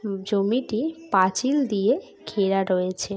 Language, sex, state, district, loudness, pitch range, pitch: Bengali, female, West Bengal, Jhargram, -24 LUFS, 190-235 Hz, 200 Hz